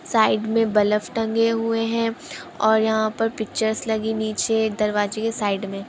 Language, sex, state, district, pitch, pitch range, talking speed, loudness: Hindi, female, Andhra Pradesh, Chittoor, 220 Hz, 215-225 Hz, 155 wpm, -22 LUFS